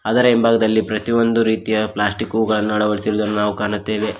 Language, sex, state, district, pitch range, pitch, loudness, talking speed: Kannada, male, Karnataka, Koppal, 105-110 Hz, 110 Hz, -18 LUFS, 115 wpm